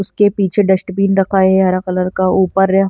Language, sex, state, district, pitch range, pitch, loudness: Hindi, female, Delhi, New Delhi, 185-195 Hz, 190 Hz, -14 LUFS